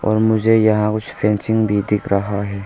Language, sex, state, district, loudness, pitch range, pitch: Hindi, male, Arunachal Pradesh, Longding, -15 LUFS, 100-110 Hz, 105 Hz